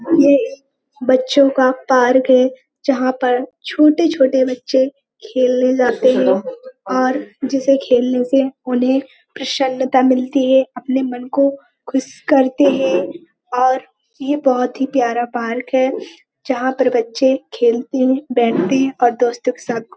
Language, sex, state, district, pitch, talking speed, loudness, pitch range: Hindi, female, Uttar Pradesh, Hamirpur, 260 Hz, 140 wpm, -16 LUFS, 255-275 Hz